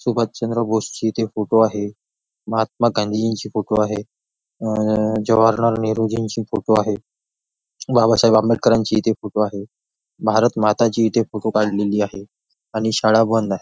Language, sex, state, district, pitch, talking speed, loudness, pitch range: Marathi, male, Maharashtra, Nagpur, 110 Hz, 125 wpm, -19 LUFS, 105-115 Hz